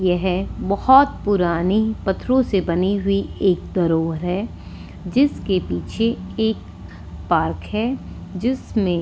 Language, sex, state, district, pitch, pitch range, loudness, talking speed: Hindi, female, Delhi, New Delhi, 195 Hz, 180-220 Hz, -20 LUFS, 100 wpm